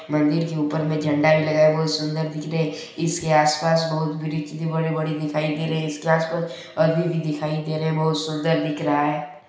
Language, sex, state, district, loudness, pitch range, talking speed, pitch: Hindi, male, Chhattisgarh, Balrampur, -22 LUFS, 155-160 Hz, 235 wpm, 155 Hz